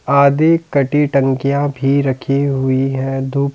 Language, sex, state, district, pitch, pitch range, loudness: Hindi, male, Delhi, New Delhi, 140 Hz, 135-140 Hz, -15 LUFS